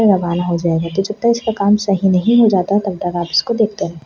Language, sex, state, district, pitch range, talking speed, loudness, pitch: Hindi, female, Delhi, New Delhi, 175-215 Hz, 220 wpm, -16 LUFS, 195 Hz